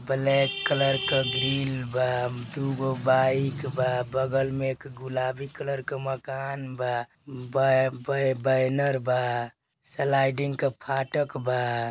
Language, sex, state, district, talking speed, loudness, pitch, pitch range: Bhojpuri, male, Uttar Pradesh, Deoria, 120 wpm, -26 LUFS, 135 Hz, 130-135 Hz